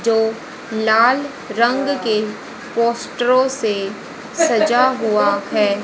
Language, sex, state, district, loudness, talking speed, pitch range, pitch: Hindi, female, Haryana, Rohtak, -18 LUFS, 90 wpm, 215-255 Hz, 230 Hz